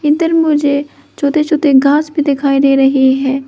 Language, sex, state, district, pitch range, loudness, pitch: Hindi, female, Arunachal Pradesh, Lower Dibang Valley, 275-305 Hz, -12 LUFS, 285 Hz